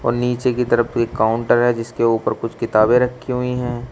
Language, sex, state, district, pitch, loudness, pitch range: Hindi, male, Uttar Pradesh, Shamli, 120 Hz, -18 LUFS, 115-125 Hz